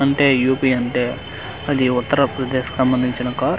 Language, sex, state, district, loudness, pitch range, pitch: Telugu, male, Andhra Pradesh, Manyam, -19 LUFS, 125-135 Hz, 130 Hz